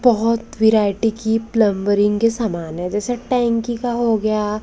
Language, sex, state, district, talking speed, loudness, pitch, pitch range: Hindi, male, Maharashtra, Gondia, 155 wpm, -18 LUFS, 220 Hz, 210-230 Hz